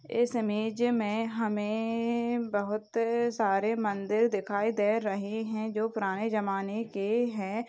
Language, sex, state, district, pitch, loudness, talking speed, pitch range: Hindi, female, Rajasthan, Nagaur, 220 Hz, -30 LUFS, 150 wpm, 205-230 Hz